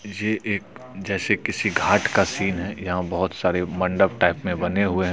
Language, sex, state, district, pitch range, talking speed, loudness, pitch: Hindi, male, Bihar, Supaul, 90-100 Hz, 200 wpm, -23 LUFS, 95 Hz